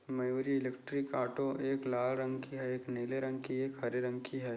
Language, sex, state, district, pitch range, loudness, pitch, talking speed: Hindi, male, Bihar, Jahanabad, 125-135 Hz, -37 LUFS, 130 Hz, 235 wpm